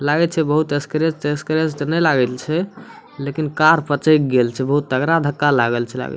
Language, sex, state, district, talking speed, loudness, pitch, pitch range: Maithili, male, Bihar, Samastipur, 205 wpm, -18 LUFS, 150 Hz, 140-160 Hz